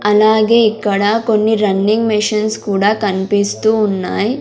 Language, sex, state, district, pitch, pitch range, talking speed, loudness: Telugu, female, Andhra Pradesh, Sri Satya Sai, 215 Hz, 205-220 Hz, 110 wpm, -14 LUFS